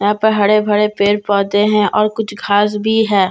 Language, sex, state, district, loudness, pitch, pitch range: Hindi, female, Bihar, Katihar, -14 LUFS, 210 Hz, 205-215 Hz